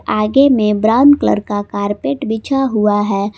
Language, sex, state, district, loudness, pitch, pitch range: Hindi, female, Jharkhand, Palamu, -14 LUFS, 215 Hz, 205-270 Hz